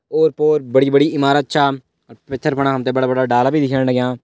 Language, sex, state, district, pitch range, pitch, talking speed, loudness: Hindi, male, Uttarakhand, Tehri Garhwal, 130-145 Hz, 135 Hz, 240 wpm, -16 LUFS